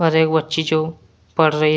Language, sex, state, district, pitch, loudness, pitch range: Hindi, male, Jharkhand, Deoghar, 160 Hz, -19 LUFS, 155-160 Hz